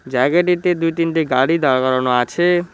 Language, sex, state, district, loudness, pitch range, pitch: Bengali, male, West Bengal, Cooch Behar, -16 LUFS, 130-175 Hz, 165 Hz